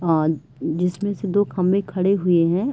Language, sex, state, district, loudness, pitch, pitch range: Hindi, female, Chhattisgarh, Raigarh, -21 LUFS, 180 Hz, 170-200 Hz